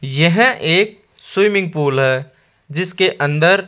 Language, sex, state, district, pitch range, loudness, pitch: Hindi, male, Rajasthan, Jaipur, 145-195 Hz, -15 LUFS, 175 Hz